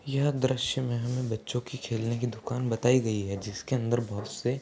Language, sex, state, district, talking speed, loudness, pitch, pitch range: Hindi, male, Uttar Pradesh, Ghazipur, 220 wpm, -30 LUFS, 120 Hz, 115-130 Hz